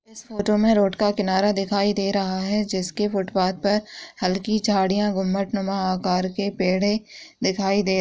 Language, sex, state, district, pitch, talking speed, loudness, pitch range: Hindi, female, Uttar Pradesh, Muzaffarnagar, 200 Hz, 170 wpm, -22 LUFS, 190-210 Hz